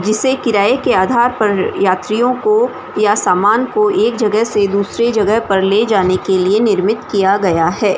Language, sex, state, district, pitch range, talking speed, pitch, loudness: Hindi, female, Bihar, Samastipur, 195-235 Hz, 180 wpm, 210 Hz, -14 LUFS